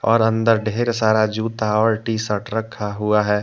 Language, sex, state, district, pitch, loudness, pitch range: Hindi, male, Jharkhand, Deoghar, 110 Hz, -19 LUFS, 105-115 Hz